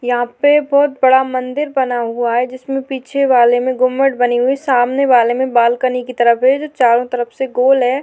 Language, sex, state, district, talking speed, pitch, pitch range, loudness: Hindi, female, Maharashtra, Chandrapur, 195 wpm, 255 Hz, 245-270 Hz, -14 LUFS